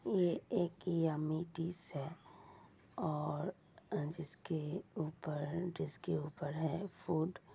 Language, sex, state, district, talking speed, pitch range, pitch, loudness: Hindi, female, Uttar Pradesh, Ghazipur, 110 wpm, 150-175 Hz, 165 Hz, -40 LUFS